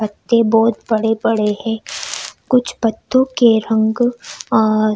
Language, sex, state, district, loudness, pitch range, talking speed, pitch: Hindi, female, Delhi, New Delhi, -16 LUFS, 215-235 Hz, 120 wpm, 225 Hz